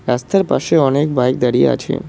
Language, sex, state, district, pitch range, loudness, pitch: Bengali, male, West Bengal, Cooch Behar, 125-145 Hz, -15 LUFS, 135 Hz